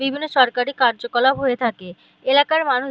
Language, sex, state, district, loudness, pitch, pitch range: Bengali, female, West Bengal, North 24 Parganas, -19 LUFS, 260 Hz, 240-275 Hz